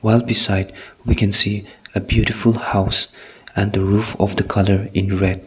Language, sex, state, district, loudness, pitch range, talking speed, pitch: English, male, Nagaland, Kohima, -18 LUFS, 95-110 Hz, 165 wpm, 100 Hz